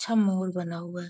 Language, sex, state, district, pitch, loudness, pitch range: Hindi, female, Bihar, Muzaffarpur, 180 Hz, -28 LUFS, 175-195 Hz